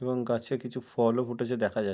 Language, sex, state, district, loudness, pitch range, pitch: Bengali, male, West Bengal, Jalpaiguri, -30 LUFS, 115-125 Hz, 120 Hz